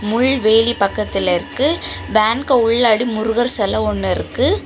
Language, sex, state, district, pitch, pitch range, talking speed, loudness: Tamil, female, Tamil Nadu, Kanyakumari, 225 Hz, 210-245 Hz, 115 wpm, -15 LUFS